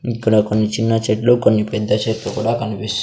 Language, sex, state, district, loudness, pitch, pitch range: Telugu, male, Andhra Pradesh, Sri Satya Sai, -17 LUFS, 110 Hz, 105-115 Hz